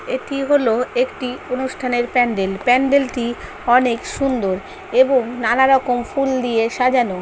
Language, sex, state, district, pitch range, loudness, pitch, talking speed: Bengali, female, West Bengal, Paschim Medinipur, 240-265 Hz, -18 LUFS, 250 Hz, 115 wpm